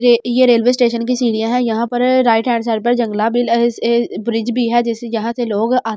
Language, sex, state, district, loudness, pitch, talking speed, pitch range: Hindi, female, Delhi, New Delhi, -15 LUFS, 235 Hz, 270 wpm, 230-245 Hz